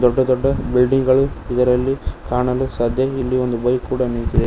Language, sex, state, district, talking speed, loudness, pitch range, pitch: Kannada, male, Karnataka, Koppal, 160 wpm, -18 LUFS, 125-130 Hz, 125 Hz